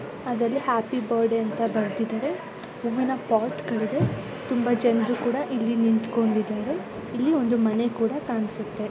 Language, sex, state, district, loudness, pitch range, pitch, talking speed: Kannada, female, Karnataka, Gulbarga, -25 LUFS, 220-245 Hz, 230 Hz, 120 wpm